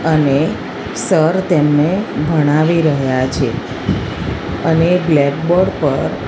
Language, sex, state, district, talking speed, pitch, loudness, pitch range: Gujarati, female, Gujarat, Gandhinagar, 95 wpm, 155 Hz, -15 LUFS, 145-165 Hz